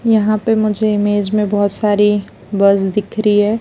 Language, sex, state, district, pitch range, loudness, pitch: Hindi, female, Chhattisgarh, Raipur, 205-215 Hz, -15 LUFS, 210 Hz